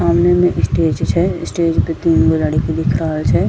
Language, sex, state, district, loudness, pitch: Angika, female, Bihar, Bhagalpur, -15 LUFS, 140 Hz